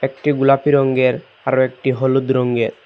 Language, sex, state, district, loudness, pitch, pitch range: Bengali, male, Assam, Hailakandi, -17 LUFS, 130 Hz, 130-135 Hz